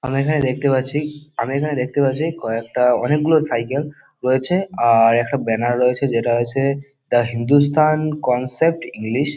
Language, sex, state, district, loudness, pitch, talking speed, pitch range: Bengali, male, West Bengal, Kolkata, -18 LUFS, 135 Hz, 145 wpm, 120-150 Hz